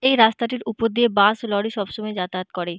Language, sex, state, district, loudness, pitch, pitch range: Bengali, female, West Bengal, North 24 Parganas, -21 LUFS, 215 Hz, 200-230 Hz